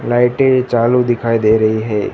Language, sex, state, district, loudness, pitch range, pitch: Hindi, male, Gujarat, Gandhinagar, -14 LUFS, 110-125 Hz, 115 Hz